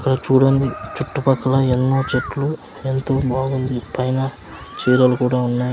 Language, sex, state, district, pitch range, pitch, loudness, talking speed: Telugu, male, Andhra Pradesh, Sri Satya Sai, 125-135 Hz, 130 Hz, -18 LUFS, 115 wpm